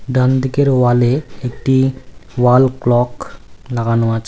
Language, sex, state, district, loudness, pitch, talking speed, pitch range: Bengali, male, West Bengal, Cooch Behar, -15 LUFS, 125 Hz, 110 wpm, 120-130 Hz